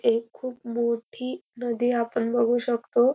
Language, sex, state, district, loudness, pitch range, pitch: Marathi, female, Maharashtra, Dhule, -26 LUFS, 230-245 Hz, 235 Hz